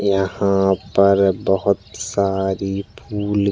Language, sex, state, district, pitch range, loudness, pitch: Hindi, male, Chhattisgarh, Jashpur, 95-100 Hz, -19 LUFS, 100 Hz